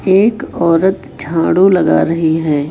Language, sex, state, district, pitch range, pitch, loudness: Hindi, male, Chhattisgarh, Raipur, 155-190 Hz, 170 Hz, -13 LUFS